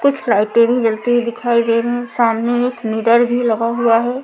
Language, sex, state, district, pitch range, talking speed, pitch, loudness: Hindi, female, Maharashtra, Mumbai Suburban, 230-245 Hz, 225 wpm, 235 Hz, -16 LUFS